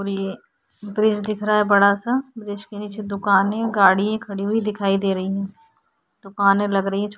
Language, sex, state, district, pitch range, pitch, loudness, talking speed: Hindi, female, Bihar, Vaishali, 195-210 Hz, 205 Hz, -20 LUFS, 200 wpm